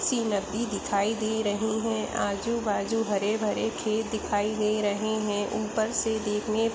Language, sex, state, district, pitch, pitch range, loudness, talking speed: Hindi, female, Jharkhand, Sahebganj, 215 Hz, 205-220 Hz, -28 LUFS, 185 wpm